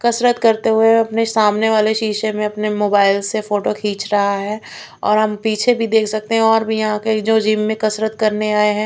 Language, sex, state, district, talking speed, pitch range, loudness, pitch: Hindi, female, Chhattisgarh, Raipur, 230 wpm, 210-220 Hz, -16 LUFS, 215 Hz